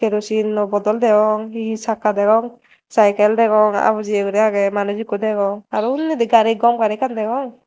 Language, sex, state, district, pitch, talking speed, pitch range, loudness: Chakma, female, Tripura, Dhalai, 215 Hz, 190 wpm, 210-230 Hz, -17 LUFS